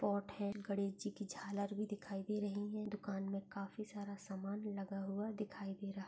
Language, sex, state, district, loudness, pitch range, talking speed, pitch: Hindi, female, Maharashtra, Pune, -44 LUFS, 195-210 Hz, 195 wpm, 200 Hz